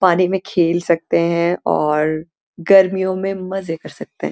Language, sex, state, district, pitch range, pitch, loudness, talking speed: Hindi, female, Uttarakhand, Uttarkashi, 170-190 Hz, 175 Hz, -17 LUFS, 165 wpm